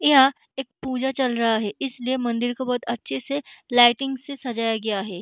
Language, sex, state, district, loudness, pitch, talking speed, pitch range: Hindi, female, Bihar, Begusarai, -23 LUFS, 245 Hz, 195 wpm, 230-270 Hz